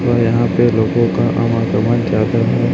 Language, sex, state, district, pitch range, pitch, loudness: Hindi, male, Chhattisgarh, Raipur, 100-120 Hz, 115 Hz, -15 LUFS